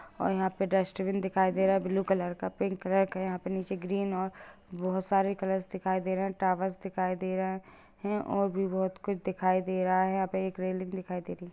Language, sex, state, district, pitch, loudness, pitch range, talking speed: Hindi, female, Bihar, Jamui, 190 Hz, -31 LUFS, 185-195 Hz, 250 wpm